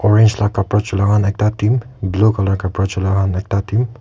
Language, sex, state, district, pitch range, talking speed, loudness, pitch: Nagamese, male, Nagaland, Kohima, 95-110 Hz, 195 wpm, -16 LUFS, 105 Hz